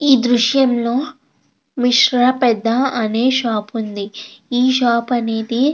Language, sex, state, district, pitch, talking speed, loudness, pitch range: Telugu, female, Andhra Pradesh, Krishna, 245 Hz, 105 wpm, -16 LUFS, 230-260 Hz